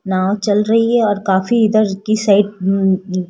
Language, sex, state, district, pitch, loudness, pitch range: Hindi, female, Rajasthan, Jaipur, 200 Hz, -15 LUFS, 190-215 Hz